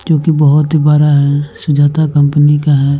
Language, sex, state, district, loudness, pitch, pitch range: Hindi, male, Bihar, West Champaran, -11 LUFS, 150 Hz, 145-150 Hz